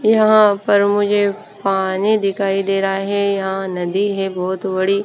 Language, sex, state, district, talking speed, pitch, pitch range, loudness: Hindi, female, Haryana, Rohtak, 155 wpm, 195 Hz, 195-205 Hz, -17 LUFS